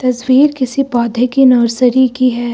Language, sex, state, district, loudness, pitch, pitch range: Hindi, female, Uttar Pradesh, Lucknow, -12 LUFS, 255 Hz, 240-260 Hz